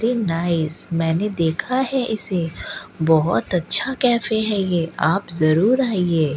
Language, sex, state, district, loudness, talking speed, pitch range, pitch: Hindi, female, Rajasthan, Bikaner, -19 LUFS, 130 wpm, 160-220 Hz, 180 Hz